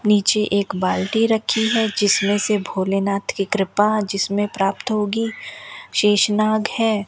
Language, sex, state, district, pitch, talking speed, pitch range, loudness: Hindi, female, Rajasthan, Bikaner, 210 Hz, 125 wpm, 200-220 Hz, -19 LUFS